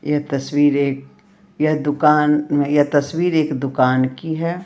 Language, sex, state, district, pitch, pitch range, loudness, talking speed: Hindi, female, Bihar, Patna, 150 Hz, 140-155 Hz, -18 LUFS, 130 wpm